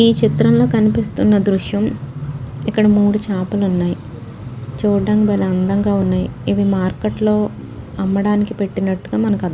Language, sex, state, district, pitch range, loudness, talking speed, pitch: Telugu, female, Telangana, Nalgonda, 170-210 Hz, -17 LUFS, 105 wpm, 195 Hz